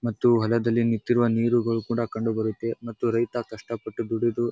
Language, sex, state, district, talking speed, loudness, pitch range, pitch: Kannada, male, Karnataka, Bijapur, 170 wpm, -25 LUFS, 115-120 Hz, 115 Hz